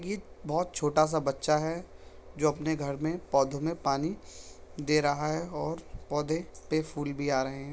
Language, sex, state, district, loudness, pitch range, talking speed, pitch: Hindi, male, Uttar Pradesh, Budaun, -31 LUFS, 145-160 Hz, 165 wpm, 150 Hz